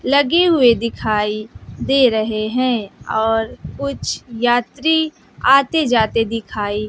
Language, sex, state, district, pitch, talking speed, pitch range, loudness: Hindi, female, Bihar, West Champaran, 230 Hz, 105 wpm, 215-265 Hz, -17 LUFS